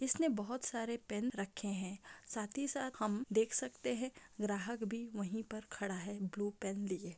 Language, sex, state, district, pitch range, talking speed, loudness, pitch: Hindi, female, Uttarakhand, Uttarkashi, 200-240 Hz, 185 wpm, -40 LUFS, 215 Hz